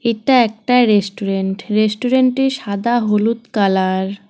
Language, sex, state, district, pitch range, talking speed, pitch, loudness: Bengali, female, West Bengal, Cooch Behar, 200-245 Hz, 125 wpm, 215 Hz, -16 LUFS